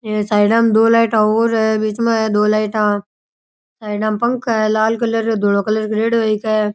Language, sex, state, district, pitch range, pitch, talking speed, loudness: Rajasthani, male, Rajasthan, Churu, 215-225 Hz, 215 Hz, 220 wpm, -16 LUFS